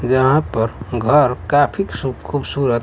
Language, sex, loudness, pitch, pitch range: Bhojpuri, male, -17 LUFS, 130 Hz, 120-145 Hz